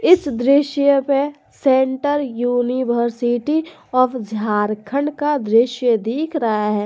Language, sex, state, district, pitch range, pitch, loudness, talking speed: Hindi, female, Jharkhand, Garhwa, 235-285 Hz, 255 Hz, -18 LUFS, 105 wpm